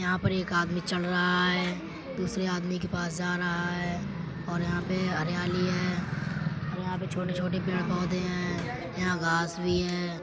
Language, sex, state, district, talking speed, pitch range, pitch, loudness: Hindi, male, Uttar Pradesh, Etah, 175 wpm, 175-180 Hz, 180 Hz, -30 LUFS